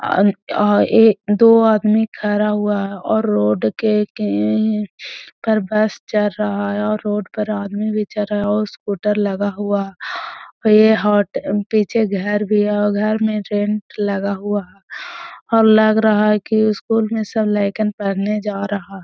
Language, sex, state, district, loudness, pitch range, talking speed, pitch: Hindi, female, Bihar, Gaya, -17 LUFS, 205-215 Hz, 165 wpm, 210 Hz